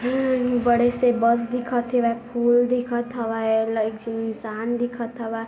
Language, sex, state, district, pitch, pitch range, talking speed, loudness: Chhattisgarhi, female, Chhattisgarh, Bilaspur, 240 Hz, 225-245 Hz, 155 wpm, -23 LUFS